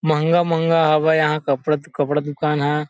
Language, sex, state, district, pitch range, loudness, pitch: Chhattisgarhi, male, Chhattisgarh, Rajnandgaon, 150-160 Hz, -19 LUFS, 155 Hz